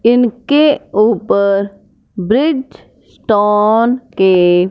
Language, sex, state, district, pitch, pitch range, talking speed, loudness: Hindi, female, Punjab, Fazilka, 215 Hz, 195-245 Hz, 65 wpm, -13 LUFS